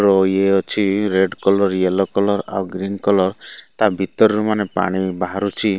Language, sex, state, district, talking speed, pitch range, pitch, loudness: Odia, male, Odisha, Malkangiri, 155 wpm, 95-100 Hz, 95 Hz, -18 LUFS